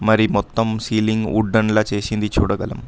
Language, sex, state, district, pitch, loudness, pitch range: Telugu, male, Karnataka, Bangalore, 110 Hz, -19 LUFS, 105-110 Hz